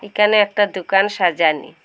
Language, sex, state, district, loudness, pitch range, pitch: Bengali, female, Assam, Hailakandi, -16 LUFS, 180-205 Hz, 195 Hz